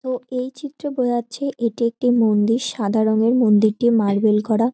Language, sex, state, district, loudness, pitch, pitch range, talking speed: Bengali, female, West Bengal, North 24 Parganas, -19 LUFS, 235 Hz, 220-250 Hz, 150 wpm